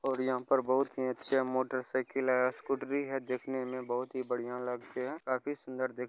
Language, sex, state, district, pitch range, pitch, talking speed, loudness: Maithili, male, Bihar, Saharsa, 125-135 Hz, 130 Hz, 215 wpm, -34 LUFS